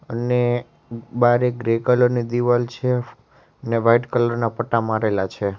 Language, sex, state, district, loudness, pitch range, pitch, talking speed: Gujarati, male, Gujarat, Valsad, -20 LUFS, 115-120 Hz, 120 Hz, 150 wpm